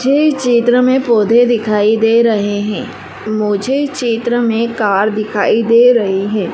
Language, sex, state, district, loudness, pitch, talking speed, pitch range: Hindi, female, Madhya Pradesh, Dhar, -13 LUFS, 230 Hz, 165 wpm, 210-245 Hz